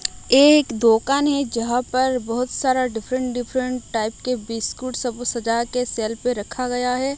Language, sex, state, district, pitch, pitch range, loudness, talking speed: Hindi, female, Odisha, Malkangiri, 250 Hz, 230-255 Hz, -21 LUFS, 165 wpm